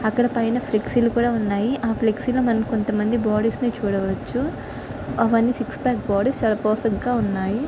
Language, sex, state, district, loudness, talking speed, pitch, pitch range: Telugu, female, Andhra Pradesh, Visakhapatnam, -22 LUFS, 180 wpm, 225 Hz, 215-240 Hz